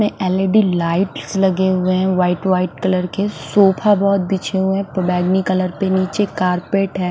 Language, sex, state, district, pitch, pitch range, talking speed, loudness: Hindi, male, Punjab, Fazilka, 190 Hz, 185-195 Hz, 195 wpm, -17 LUFS